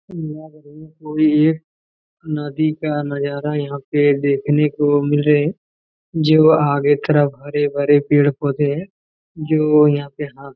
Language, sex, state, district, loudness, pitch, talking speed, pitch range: Hindi, male, Chhattisgarh, Raigarh, -17 LUFS, 145 Hz, 135 wpm, 145-155 Hz